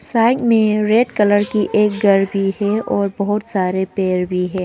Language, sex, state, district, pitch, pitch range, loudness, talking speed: Hindi, female, Arunachal Pradesh, Papum Pare, 205 Hz, 195-215 Hz, -16 LUFS, 195 wpm